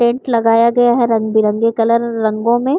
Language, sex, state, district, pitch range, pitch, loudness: Hindi, female, Uttar Pradesh, Gorakhpur, 225-240 Hz, 230 Hz, -14 LUFS